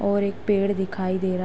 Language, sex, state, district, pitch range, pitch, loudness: Hindi, female, Uttar Pradesh, Hamirpur, 185-200 Hz, 195 Hz, -24 LUFS